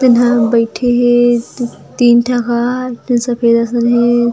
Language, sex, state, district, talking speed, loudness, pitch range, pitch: Chhattisgarhi, female, Chhattisgarh, Jashpur, 150 wpm, -13 LUFS, 235-245 Hz, 240 Hz